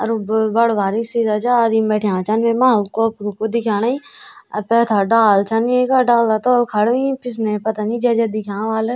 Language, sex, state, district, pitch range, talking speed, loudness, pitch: Garhwali, female, Uttarakhand, Tehri Garhwal, 215-240 Hz, 215 wpm, -17 LUFS, 225 Hz